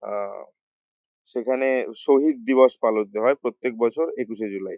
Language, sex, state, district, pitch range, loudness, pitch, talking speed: Bengali, male, West Bengal, North 24 Parganas, 110-130 Hz, -22 LUFS, 125 Hz, 140 wpm